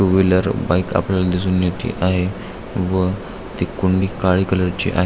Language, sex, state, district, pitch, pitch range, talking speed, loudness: Marathi, male, Maharashtra, Aurangabad, 95 Hz, 90-95 Hz, 165 wpm, -19 LUFS